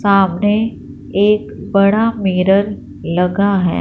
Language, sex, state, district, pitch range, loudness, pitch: Hindi, female, Punjab, Fazilka, 190-205 Hz, -15 LUFS, 200 Hz